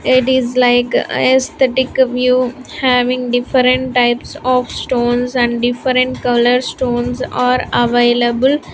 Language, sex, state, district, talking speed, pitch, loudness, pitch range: English, female, Andhra Pradesh, Sri Satya Sai, 110 wpm, 250 Hz, -14 LUFS, 245-255 Hz